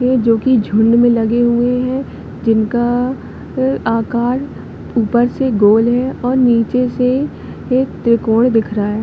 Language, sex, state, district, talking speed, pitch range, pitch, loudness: Hindi, female, Chhattisgarh, Bilaspur, 145 wpm, 230-255 Hz, 240 Hz, -14 LUFS